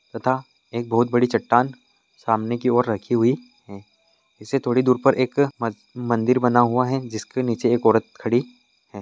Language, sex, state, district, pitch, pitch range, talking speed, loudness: Hindi, male, Jharkhand, Jamtara, 120 Hz, 115-125 Hz, 185 wpm, -21 LUFS